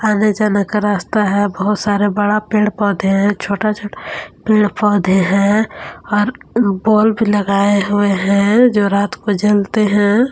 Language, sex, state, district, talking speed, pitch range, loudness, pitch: Hindi, female, Jharkhand, Palamu, 150 wpm, 200-215 Hz, -15 LUFS, 205 Hz